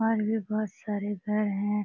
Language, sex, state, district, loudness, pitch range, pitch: Hindi, female, Bihar, Jamui, -30 LUFS, 205-215 Hz, 210 Hz